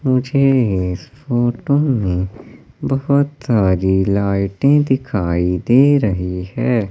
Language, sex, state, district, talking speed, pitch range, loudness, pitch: Hindi, male, Madhya Pradesh, Katni, 95 wpm, 95-135 Hz, -17 LUFS, 120 Hz